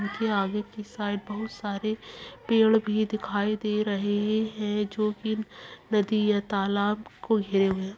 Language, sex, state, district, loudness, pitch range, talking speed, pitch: Hindi, female, Chhattisgarh, Kabirdham, -27 LUFS, 205-215 Hz, 160 wpm, 210 Hz